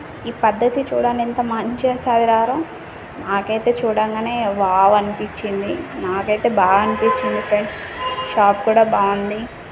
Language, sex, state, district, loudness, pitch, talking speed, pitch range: Telugu, female, Telangana, Karimnagar, -18 LUFS, 220 Hz, 105 wpm, 205-240 Hz